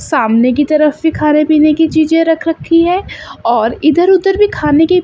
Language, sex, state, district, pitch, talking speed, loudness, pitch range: Hindi, female, Chandigarh, Chandigarh, 320 Hz, 200 wpm, -11 LUFS, 305-340 Hz